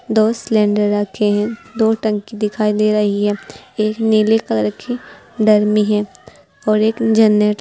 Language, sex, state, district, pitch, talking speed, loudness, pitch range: Hindi, female, Uttar Pradesh, Saharanpur, 215 Hz, 160 wpm, -16 LUFS, 205-220 Hz